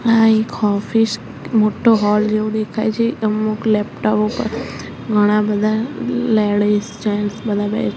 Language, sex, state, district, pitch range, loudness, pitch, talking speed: Gujarati, female, Gujarat, Gandhinagar, 210-225 Hz, -17 LUFS, 215 Hz, 130 wpm